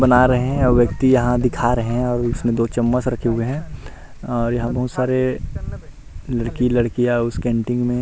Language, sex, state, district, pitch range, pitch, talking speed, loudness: Hindi, male, Chhattisgarh, Rajnandgaon, 120-125 Hz, 125 Hz, 195 wpm, -19 LUFS